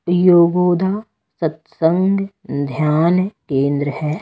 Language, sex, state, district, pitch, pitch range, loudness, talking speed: Hindi, female, Delhi, New Delhi, 170 Hz, 150-185 Hz, -17 LUFS, 70 wpm